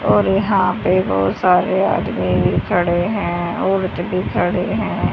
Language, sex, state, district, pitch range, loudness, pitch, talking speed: Hindi, female, Haryana, Charkhi Dadri, 175-190 Hz, -17 LUFS, 185 Hz, 150 wpm